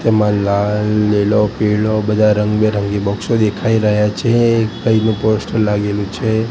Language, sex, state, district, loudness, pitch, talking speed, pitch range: Gujarati, male, Gujarat, Gandhinagar, -15 LUFS, 105 Hz, 140 wpm, 105-110 Hz